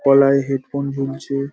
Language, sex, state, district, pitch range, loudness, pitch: Bengali, male, West Bengal, Paschim Medinipur, 135-140 Hz, -19 LUFS, 140 Hz